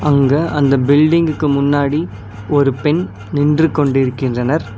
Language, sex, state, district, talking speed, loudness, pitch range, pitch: Tamil, male, Tamil Nadu, Nilgiris, 100 wpm, -15 LUFS, 130-150 Hz, 145 Hz